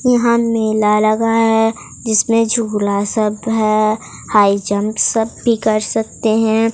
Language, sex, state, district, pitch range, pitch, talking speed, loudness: Hindi, female, Odisha, Sambalpur, 215-225 Hz, 220 Hz, 135 wpm, -15 LUFS